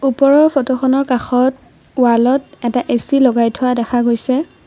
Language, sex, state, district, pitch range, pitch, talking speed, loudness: Assamese, female, Assam, Kamrup Metropolitan, 240-275 Hz, 255 Hz, 130 wpm, -14 LUFS